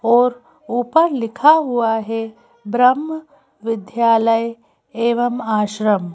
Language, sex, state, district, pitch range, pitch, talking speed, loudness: Hindi, female, Madhya Pradesh, Bhopal, 225-250 Hz, 235 Hz, 100 wpm, -17 LUFS